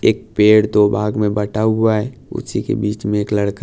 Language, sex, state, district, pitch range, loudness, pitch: Hindi, male, Chhattisgarh, Raipur, 105-110 Hz, -17 LUFS, 105 Hz